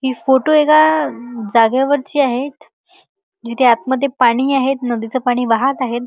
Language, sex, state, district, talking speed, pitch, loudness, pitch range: Marathi, male, Maharashtra, Chandrapur, 140 wpm, 260 Hz, -15 LUFS, 240-280 Hz